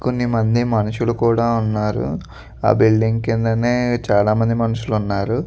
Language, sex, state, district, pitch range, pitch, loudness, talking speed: Telugu, male, Andhra Pradesh, Visakhapatnam, 110-120 Hz, 115 Hz, -18 LUFS, 120 wpm